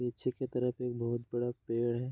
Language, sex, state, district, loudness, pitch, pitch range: Hindi, male, Bihar, Bhagalpur, -35 LUFS, 120 Hz, 120-125 Hz